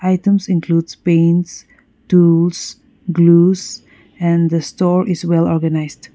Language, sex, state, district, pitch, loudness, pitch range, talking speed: English, female, Nagaland, Kohima, 170 Hz, -15 LUFS, 165-180 Hz, 105 wpm